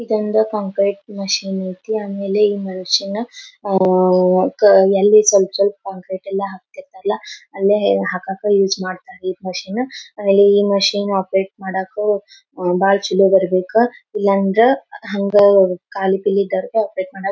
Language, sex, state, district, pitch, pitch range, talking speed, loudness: Kannada, female, Karnataka, Belgaum, 200 Hz, 190-210 Hz, 120 wpm, -17 LUFS